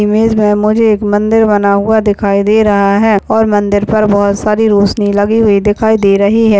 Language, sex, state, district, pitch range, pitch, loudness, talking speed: Hindi, female, Maharashtra, Chandrapur, 205-220 Hz, 210 Hz, -10 LUFS, 210 wpm